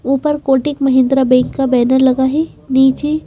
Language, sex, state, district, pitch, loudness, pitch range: Hindi, female, Madhya Pradesh, Bhopal, 265 Hz, -13 LUFS, 260-290 Hz